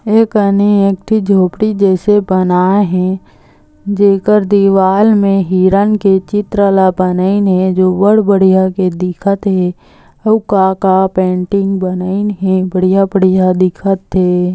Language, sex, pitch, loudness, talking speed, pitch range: Chhattisgarhi, female, 190 Hz, -11 LUFS, 125 wpm, 185-200 Hz